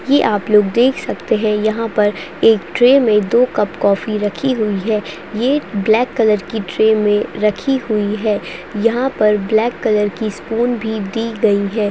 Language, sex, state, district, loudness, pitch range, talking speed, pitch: Hindi, female, Bihar, Jamui, -16 LUFS, 210-230 Hz, 180 wpm, 215 Hz